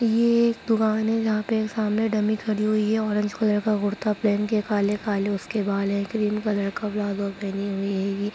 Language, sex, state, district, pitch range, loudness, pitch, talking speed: Hindi, female, Bihar, Sitamarhi, 205-220 Hz, -24 LUFS, 210 Hz, 215 wpm